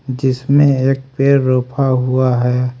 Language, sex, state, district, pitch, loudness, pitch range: Hindi, male, Haryana, Rohtak, 130 Hz, -15 LUFS, 125-135 Hz